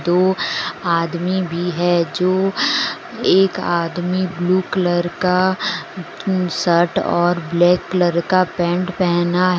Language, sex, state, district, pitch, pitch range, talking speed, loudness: Hindi, female, Jharkhand, Deoghar, 180 Hz, 175-185 Hz, 115 wpm, -18 LUFS